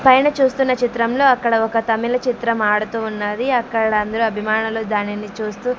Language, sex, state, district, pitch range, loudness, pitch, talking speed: Telugu, female, Andhra Pradesh, Sri Satya Sai, 215-250 Hz, -18 LUFS, 225 Hz, 145 wpm